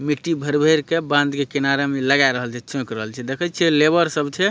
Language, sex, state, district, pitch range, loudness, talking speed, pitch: Maithili, male, Bihar, Supaul, 135-160 Hz, -19 LUFS, 240 wpm, 145 Hz